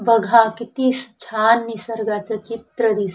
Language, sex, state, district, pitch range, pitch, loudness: Marathi, female, Maharashtra, Chandrapur, 220-235 Hz, 225 Hz, -19 LUFS